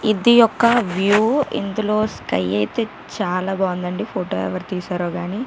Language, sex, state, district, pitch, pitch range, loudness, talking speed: Telugu, female, Telangana, Karimnagar, 195 Hz, 180-215 Hz, -19 LUFS, 130 wpm